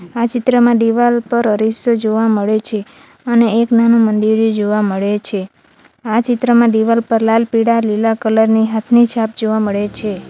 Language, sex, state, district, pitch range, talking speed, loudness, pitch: Gujarati, female, Gujarat, Valsad, 215-235 Hz, 170 wpm, -14 LUFS, 225 Hz